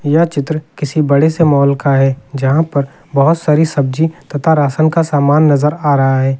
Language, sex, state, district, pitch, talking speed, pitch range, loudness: Hindi, male, Uttar Pradesh, Lucknow, 145 Hz, 195 wpm, 140-160 Hz, -13 LUFS